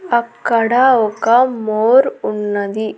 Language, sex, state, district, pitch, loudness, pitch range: Telugu, female, Andhra Pradesh, Annamaya, 230 Hz, -15 LUFS, 215-245 Hz